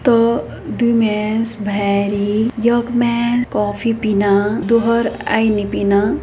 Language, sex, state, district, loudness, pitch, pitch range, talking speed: Hindi, female, Uttarakhand, Uttarkashi, -16 LUFS, 225 Hz, 205-235 Hz, 115 wpm